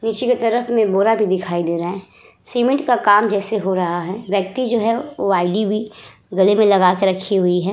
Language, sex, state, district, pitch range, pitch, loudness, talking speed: Hindi, female, Uttar Pradesh, Budaun, 190-225 Hz, 205 Hz, -17 LUFS, 210 wpm